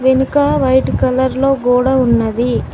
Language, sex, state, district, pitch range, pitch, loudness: Telugu, female, Telangana, Mahabubabad, 245-265 Hz, 260 Hz, -14 LUFS